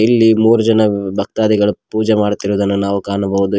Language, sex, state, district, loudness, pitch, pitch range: Kannada, male, Karnataka, Koppal, -14 LUFS, 105 Hz, 100-110 Hz